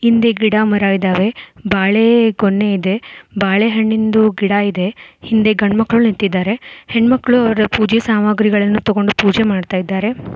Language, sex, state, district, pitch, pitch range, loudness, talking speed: Kannada, female, Karnataka, Koppal, 215 Hz, 200-225 Hz, -14 LUFS, 120 wpm